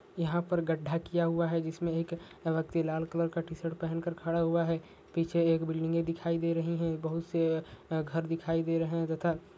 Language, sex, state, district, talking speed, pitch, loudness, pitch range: Hindi, male, Jharkhand, Jamtara, 200 wpm, 165 Hz, -32 LUFS, 165-170 Hz